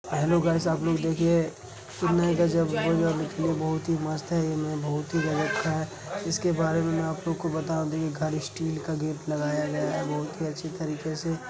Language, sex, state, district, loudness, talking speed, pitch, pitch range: Hindi, male, Uttar Pradesh, Jalaun, -27 LUFS, 185 wpm, 160 Hz, 155-165 Hz